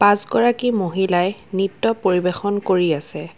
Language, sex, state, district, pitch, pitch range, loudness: Assamese, female, Assam, Kamrup Metropolitan, 190 Hz, 175-205 Hz, -19 LUFS